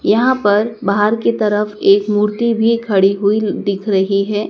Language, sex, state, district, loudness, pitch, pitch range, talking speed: Hindi, male, Madhya Pradesh, Dhar, -15 LUFS, 210 Hz, 200-220 Hz, 175 wpm